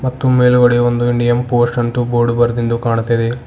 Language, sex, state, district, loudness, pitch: Kannada, male, Karnataka, Bidar, -14 LUFS, 120 Hz